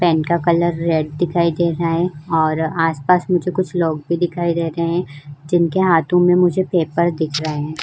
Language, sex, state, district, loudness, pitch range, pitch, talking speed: Hindi, female, Uttar Pradesh, Jyotiba Phule Nagar, -18 LUFS, 160-175 Hz, 170 Hz, 200 wpm